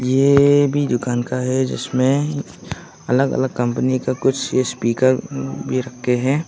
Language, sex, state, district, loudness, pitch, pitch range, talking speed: Hindi, male, Arunachal Pradesh, Longding, -19 LUFS, 130 Hz, 125-135 Hz, 140 wpm